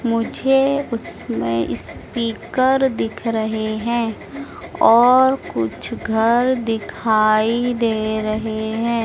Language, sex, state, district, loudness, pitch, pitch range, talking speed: Hindi, female, Madhya Pradesh, Dhar, -19 LUFS, 225 Hz, 215-240 Hz, 85 wpm